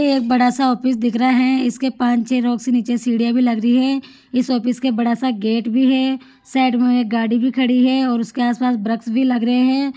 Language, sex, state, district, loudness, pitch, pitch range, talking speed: Hindi, female, Rajasthan, Churu, -17 LUFS, 250 Hz, 240-260 Hz, 240 wpm